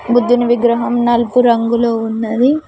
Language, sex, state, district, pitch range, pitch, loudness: Telugu, female, Telangana, Mahabubabad, 235-245 Hz, 240 Hz, -14 LUFS